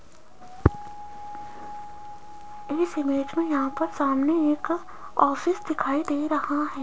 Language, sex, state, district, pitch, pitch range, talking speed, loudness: Hindi, female, Rajasthan, Jaipur, 330 Hz, 290-415 Hz, 105 wpm, -25 LUFS